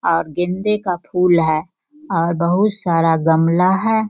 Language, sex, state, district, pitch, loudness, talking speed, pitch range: Hindi, female, Bihar, Sitamarhi, 180 Hz, -16 LUFS, 145 wpm, 165-210 Hz